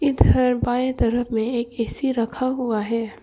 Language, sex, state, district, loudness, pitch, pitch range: Hindi, female, Arunachal Pradesh, Longding, -22 LUFS, 240 Hz, 230-255 Hz